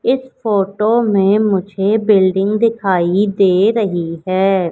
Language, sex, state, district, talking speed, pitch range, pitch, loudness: Hindi, female, Madhya Pradesh, Katni, 115 wpm, 190-215 Hz, 200 Hz, -15 LUFS